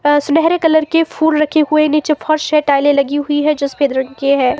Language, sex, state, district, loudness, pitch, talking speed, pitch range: Hindi, female, Himachal Pradesh, Shimla, -14 LUFS, 300 Hz, 250 wpm, 280-310 Hz